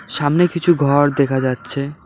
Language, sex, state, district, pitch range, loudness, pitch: Bengali, male, West Bengal, Alipurduar, 140-160 Hz, -17 LUFS, 145 Hz